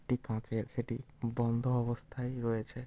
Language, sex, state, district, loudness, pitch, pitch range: Bengali, male, West Bengal, Malda, -36 LUFS, 120 Hz, 115-125 Hz